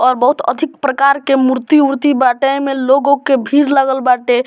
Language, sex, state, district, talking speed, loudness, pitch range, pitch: Bhojpuri, male, Bihar, Muzaffarpur, 175 wpm, -13 LUFS, 260-280 Hz, 275 Hz